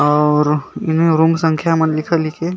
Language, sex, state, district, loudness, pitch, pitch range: Sadri, male, Chhattisgarh, Jashpur, -15 LUFS, 160 Hz, 150-165 Hz